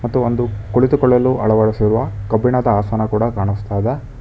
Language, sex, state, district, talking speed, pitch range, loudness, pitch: Kannada, male, Karnataka, Bangalore, 130 wpm, 105-125 Hz, -16 LUFS, 115 Hz